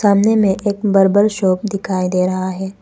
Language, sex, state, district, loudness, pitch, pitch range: Hindi, female, Arunachal Pradesh, Papum Pare, -16 LUFS, 195 Hz, 185-205 Hz